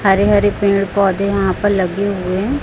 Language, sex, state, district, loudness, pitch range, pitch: Hindi, female, Chhattisgarh, Raipur, -15 LUFS, 195-205 Hz, 200 Hz